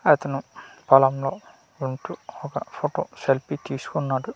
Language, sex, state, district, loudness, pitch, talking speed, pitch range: Telugu, male, Andhra Pradesh, Manyam, -24 LUFS, 135 Hz, 110 wpm, 135-150 Hz